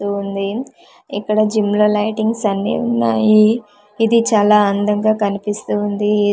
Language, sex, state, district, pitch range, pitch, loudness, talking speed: Telugu, female, Andhra Pradesh, Manyam, 205-215 Hz, 210 Hz, -16 LUFS, 115 wpm